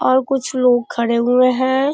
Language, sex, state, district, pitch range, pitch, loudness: Hindi, female, Uttar Pradesh, Budaun, 245-260 Hz, 255 Hz, -16 LUFS